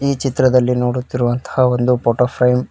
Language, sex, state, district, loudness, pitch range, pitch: Kannada, male, Karnataka, Koppal, -16 LUFS, 125-130 Hz, 125 Hz